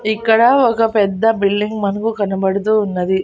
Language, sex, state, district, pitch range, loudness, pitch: Telugu, female, Andhra Pradesh, Annamaya, 200-225 Hz, -15 LUFS, 210 Hz